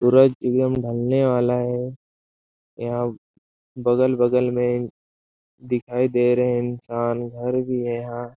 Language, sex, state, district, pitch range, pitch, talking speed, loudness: Hindi, male, Chhattisgarh, Sarguja, 120-125 Hz, 120 Hz, 130 wpm, -22 LUFS